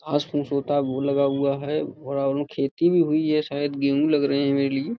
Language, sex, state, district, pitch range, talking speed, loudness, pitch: Hindi, male, Uttar Pradesh, Budaun, 140-150 Hz, 170 wpm, -23 LUFS, 140 Hz